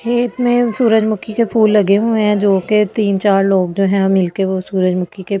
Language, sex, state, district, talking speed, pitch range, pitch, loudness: Hindi, female, Delhi, New Delhi, 210 wpm, 195-220 Hz, 205 Hz, -14 LUFS